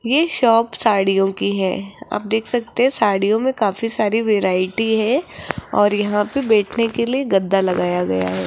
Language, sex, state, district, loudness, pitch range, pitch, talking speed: Hindi, female, Rajasthan, Jaipur, -18 LUFS, 195-230 Hz, 210 Hz, 170 wpm